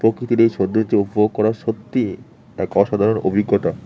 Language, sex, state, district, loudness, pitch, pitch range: Bengali, male, West Bengal, Cooch Behar, -19 LUFS, 110 Hz, 100-110 Hz